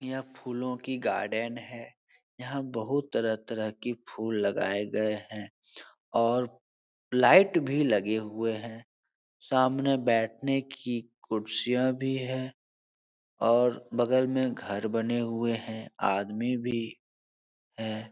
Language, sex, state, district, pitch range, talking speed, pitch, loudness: Hindi, male, Bihar, Supaul, 110-130 Hz, 120 wpm, 115 Hz, -29 LUFS